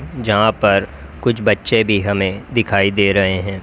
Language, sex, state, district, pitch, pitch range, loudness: Hindi, male, Uttar Pradesh, Lalitpur, 100 Hz, 95-110 Hz, -16 LUFS